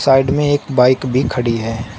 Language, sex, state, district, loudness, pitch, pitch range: Hindi, male, Uttar Pradesh, Shamli, -15 LUFS, 130 Hz, 120-135 Hz